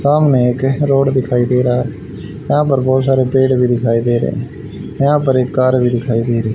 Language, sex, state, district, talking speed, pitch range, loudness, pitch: Hindi, male, Haryana, Charkhi Dadri, 220 wpm, 125-135 Hz, -14 LUFS, 130 Hz